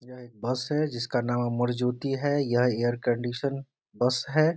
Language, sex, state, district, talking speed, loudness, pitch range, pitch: Hindi, male, Bihar, Muzaffarpur, 195 wpm, -27 LUFS, 120-135 Hz, 125 Hz